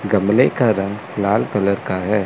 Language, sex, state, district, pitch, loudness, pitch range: Hindi, male, Chandigarh, Chandigarh, 100 Hz, -18 LUFS, 100-105 Hz